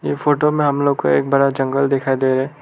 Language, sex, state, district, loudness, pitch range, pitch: Hindi, male, Arunachal Pradesh, Lower Dibang Valley, -17 LUFS, 130-140 Hz, 140 Hz